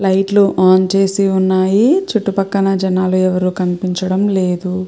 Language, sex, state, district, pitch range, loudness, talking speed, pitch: Telugu, female, Andhra Pradesh, Chittoor, 185-195 Hz, -14 LUFS, 135 wpm, 190 Hz